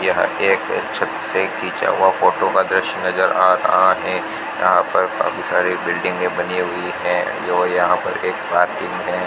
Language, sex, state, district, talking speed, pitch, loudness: Hindi, male, Rajasthan, Bikaner, 175 wpm, 90 Hz, -18 LUFS